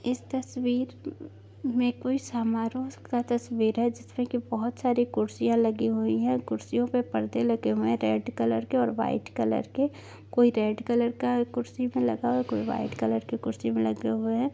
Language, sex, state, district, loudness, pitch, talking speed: Hindi, female, Maharashtra, Nagpur, -28 LUFS, 225 Hz, 200 wpm